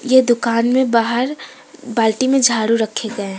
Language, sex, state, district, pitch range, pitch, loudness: Hindi, female, Jharkhand, Deoghar, 225-260 Hz, 240 Hz, -16 LUFS